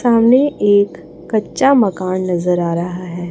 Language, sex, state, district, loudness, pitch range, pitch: Hindi, female, Chhattisgarh, Raipur, -15 LUFS, 175-230 Hz, 185 Hz